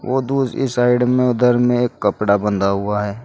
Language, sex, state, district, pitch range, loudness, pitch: Hindi, male, Uttar Pradesh, Saharanpur, 105-125 Hz, -17 LUFS, 120 Hz